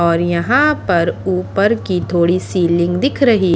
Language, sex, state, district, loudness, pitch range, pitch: Hindi, female, Haryana, Charkhi Dadri, -15 LUFS, 170-200 Hz, 180 Hz